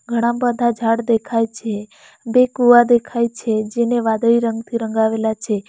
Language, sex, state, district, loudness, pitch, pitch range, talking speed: Gujarati, female, Gujarat, Valsad, -17 LUFS, 230 Hz, 220-240 Hz, 150 wpm